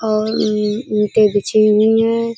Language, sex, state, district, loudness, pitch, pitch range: Hindi, female, Uttar Pradesh, Budaun, -15 LUFS, 215 Hz, 210-225 Hz